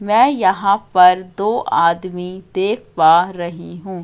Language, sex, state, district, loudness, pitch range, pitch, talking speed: Hindi, female, Madhya Pradesh, Katni, -15 LUFS, 175-200 Hz, 185 Hz, 135 wpm